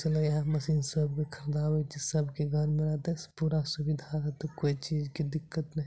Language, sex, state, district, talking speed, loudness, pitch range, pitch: Maithili, male, Bihar, Supaul, 195 wpm, -32 LUFS, 150-155 Hz, 150 Hz